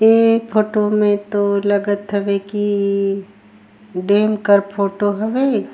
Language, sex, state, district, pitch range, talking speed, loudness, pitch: Surgujia, female, Chhattisgarh, Sarguja, 200-210 Hz, 145 wpm, -17 LUFS, 205 Hz